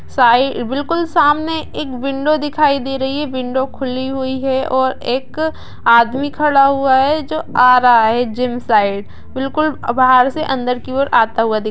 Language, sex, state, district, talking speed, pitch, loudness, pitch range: Hindi, female, Bihar, East Champaran, 180 wpm, 265 Hz, -15 LUFS, 250-285 Hz